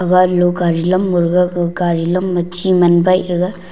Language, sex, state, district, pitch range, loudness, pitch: Wancho, male, Arunachal Pradesh, Longding, 175-185 Hz, -14 LUFS, 180 Hz